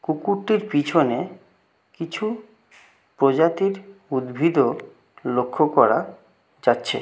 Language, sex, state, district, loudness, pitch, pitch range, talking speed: Bengali, male, West Bengal, Jalpaiguri, -22 LUFS, 165 Hz, 135-200 Hz, 70 wpm